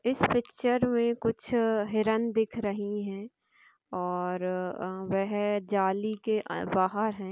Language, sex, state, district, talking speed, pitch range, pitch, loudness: Hindi, female, Bihar, Jamui, 100 wpm, 190-225 Hz, 210 Hz, -29 LUFS